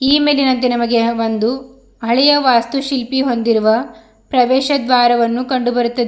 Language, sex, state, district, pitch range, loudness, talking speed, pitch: Kannada, female, Karnataka, Bidar, 235-265 Hz, -15 LUFS, 110 wpm, 250 Hz